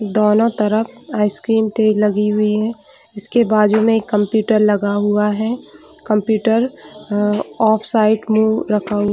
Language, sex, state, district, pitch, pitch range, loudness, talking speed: Hindi, female, Chhattisgarh, Bilaspur, 215 Hz, 210-225 Hz, -16 LUFS, 145 wpm